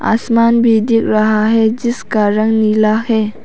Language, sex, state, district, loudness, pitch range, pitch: Hindi, female, Arunachal Pradesh, Papum Pare, -13 LUFS, 215-230 Hz, 220 Hz